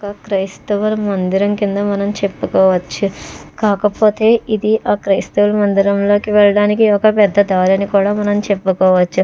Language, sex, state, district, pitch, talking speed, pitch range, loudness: Telugu, female, Andhra Pradesh, Chittoor, 205 Hz, 110 wpm, 195-210 Hz, -14 LUFS